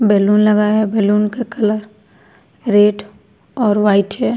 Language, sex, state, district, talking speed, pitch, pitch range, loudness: Hindi, female, Uttar Pradesh, Budaun, 135 wpm, 210 Hz, 205-215 Hz, -15 LUFS